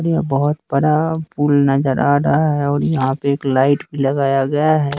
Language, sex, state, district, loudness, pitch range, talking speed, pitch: Hindi, male, Bihar, West Champaran, -17 LUFS, 135-150 Hz, 205 wpm, 145 Hz